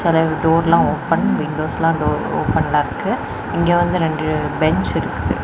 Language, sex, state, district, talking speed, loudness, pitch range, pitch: Tamil, female, Tamil Nadu, Kanyakumari, 130 wpm, -18 LUFS, 160-170 Hz, 165 Hz